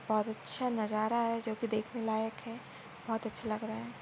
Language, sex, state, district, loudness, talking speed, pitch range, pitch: Hindi, female, Goa, North and South Goa, -35 LUFS, 195 wpm, 220-230 Hz, 225 Hz